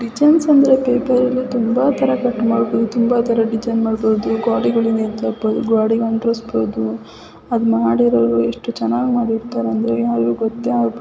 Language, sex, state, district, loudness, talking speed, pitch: Kannada, female, Karnataka, Chamarajanagar, -17 LUFS, 115 wpm, 225 Hz